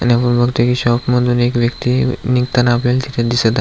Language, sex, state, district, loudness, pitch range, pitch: Marathi, male, Maharashtra, Aurangabad, -15 LUFS, 120-125 Hz, 120 Hz